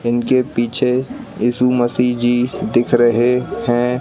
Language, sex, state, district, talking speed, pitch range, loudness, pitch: Hindi, male, Madhya Pradesh, Katni, 120 wpm, 120-125 Hz, -16 LUFS, 120 Hz